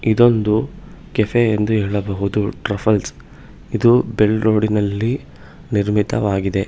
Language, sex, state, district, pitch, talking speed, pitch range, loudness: Kannada, male, Karnataka, Bangalore, 110 Hz, 70 wpm, 100-120 Hz, -18 LUFS